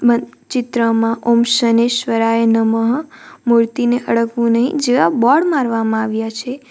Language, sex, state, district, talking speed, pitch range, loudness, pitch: Gujarati, female, Gujarat, Valsad, 115 wpm, 230-250 Hz, -15 LUFS, 235 Hz